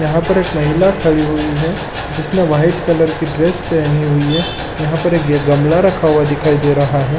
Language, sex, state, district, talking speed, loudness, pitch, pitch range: Hindi, male, Chhattisgarh, Balrampur, 215 wpm, -14 LUFS, 155 Hz, 150-170 Hz